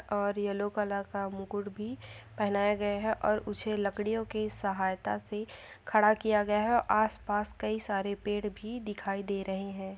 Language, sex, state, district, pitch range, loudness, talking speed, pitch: Hindi, female, Chhattisgarh, Sukma, 200-215 Hz, -32 LUFS, 175 wpm, 205 Hz